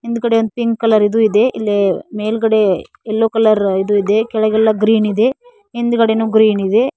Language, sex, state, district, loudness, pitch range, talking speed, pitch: Kannada, female, Karnataka, Koppal, -14 LUFS, 210-230 Hz, 155 wpm, 220 Hz